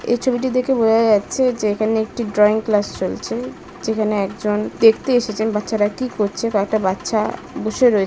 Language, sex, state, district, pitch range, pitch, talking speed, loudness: Bengali, female, West Bengal, Jhargram, 210-240 Hz, 220 Hz, 165 wpm, -19 LUFS